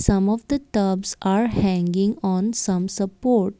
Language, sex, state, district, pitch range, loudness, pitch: English, female, Assam, Kamrup Metropolitan, 190-225 Hz, -22 LUFS, 200 Hz